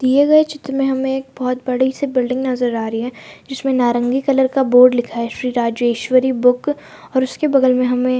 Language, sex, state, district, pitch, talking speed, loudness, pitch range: Hindi, female, Uttar Pradesh, Hamirpur, 255 Hz, 225 wpm, -17 LUFS, 245-270 Hz